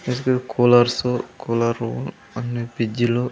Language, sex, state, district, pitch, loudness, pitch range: Telugu, male, Andhra Pradesh, Sri Satya Sai, 120 Hz, -21 LUFS, 115-125 Hz